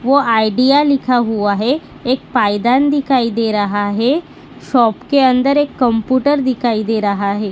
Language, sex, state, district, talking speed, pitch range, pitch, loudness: Hindi, female, Maharashtra, Nagpur, 160 wpm, 220-270 Hz, 245 Hz, -15 LUFS